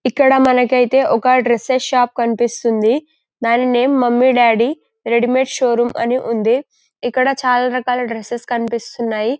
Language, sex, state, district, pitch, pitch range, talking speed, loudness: Telugu, female, Telangana, Karimnagar, 245 Hz, 235-255 Hz, 130 wpm, -15 LUFS